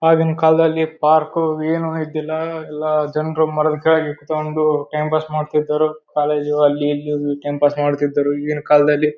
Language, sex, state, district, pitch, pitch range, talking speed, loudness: Kannada, male, Karnataka, Bellary, 155 Hz, 150-160 Hz, 145 wpm, -18 LUFS